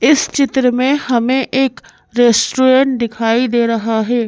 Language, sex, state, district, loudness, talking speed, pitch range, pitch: Hindi, female, Madhya Pradesh, Bhopal, -14 LUFS, 140 wpm, 235-265 Hz, 250 Hz